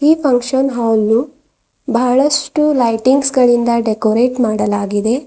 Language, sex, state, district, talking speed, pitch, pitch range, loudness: Kannada, female, Karnataka, Bidar, 90 wpm, 245 Hz, 225-275 Hz, -14 LUFS